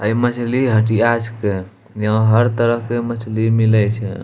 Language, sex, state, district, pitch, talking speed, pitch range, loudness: Angika, male, Bihar, Bhagalpur, 110 Hz, 155 wpm, 110-120 Hz, -17 LUFS